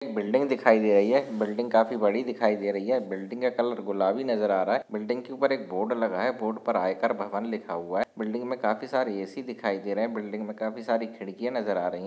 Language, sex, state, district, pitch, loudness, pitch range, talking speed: Hindi, male, Maharashtra, Nagpur, 110 Hz, -27 LUFS, 105-120 Hz, 255 wpm